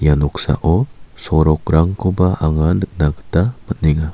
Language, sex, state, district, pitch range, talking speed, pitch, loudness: Garo, male, Meghalaya, South Garo Hills, 75-95 Hz, 100 wpm, 80 Hz, -17 LUFS